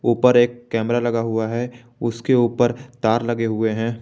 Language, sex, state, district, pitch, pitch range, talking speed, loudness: Hindi, male, Jharkhand, Garhwa, 120 Hz, 115-120 Hz, 180 wpm, -20 LUFS